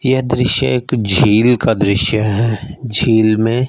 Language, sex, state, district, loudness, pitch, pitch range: Hindi, male, Punjab, Fazilka, -14 LUFS, 115 Hz, 110-125 Hz